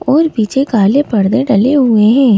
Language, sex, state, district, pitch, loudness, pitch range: Hindi, female, Madhya Pradesh, Bhopal, 245 Hz, -11 LUFS, 210-275 Hz